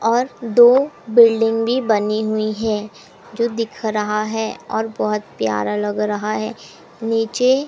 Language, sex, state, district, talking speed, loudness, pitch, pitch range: Hindi, female, Madhya Pradesh, Umaria, 140 wpm, -18 LUFS, 220 Hz, 210-230 Hz